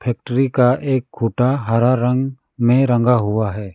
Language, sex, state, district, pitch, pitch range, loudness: Hindi, male, West Bengal, Alipurduar, 125 Hz, 115-130 Hz, -17 LUFS